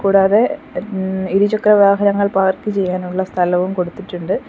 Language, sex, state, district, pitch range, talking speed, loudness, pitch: Malayalam, female, Kerala, Kollam, 185-205 Hz, 95 wpm, -16 LUFS, 195 Hz